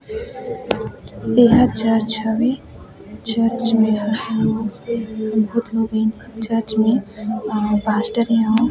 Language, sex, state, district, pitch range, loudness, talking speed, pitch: Chhattisgarhi, female, Chhattisgarh, Sarguja, 220-235 Hz, -18 LUFS, 105 wpm, 225 Hz